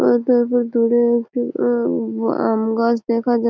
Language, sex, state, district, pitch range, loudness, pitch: Bengali, female, West Bengal, Malda, 220-240 Hz, -18 LUFS, 235 Hz